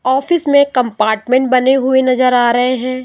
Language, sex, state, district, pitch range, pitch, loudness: Hindi, female, Rajasthan, Jaipur, 250-265 Hz, 255 Hz, -13 LUFS